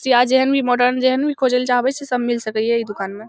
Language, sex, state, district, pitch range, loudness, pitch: Maithili, female, Bihar, Samastipur, 235-260 Hz, -18 LUFS, 250 Hz